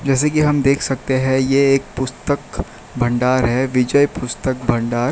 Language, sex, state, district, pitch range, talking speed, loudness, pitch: Hindi, male, Gujarat, Valsad, 125-140 Hz, 165 wpm, -17 LUFS, 130 Hz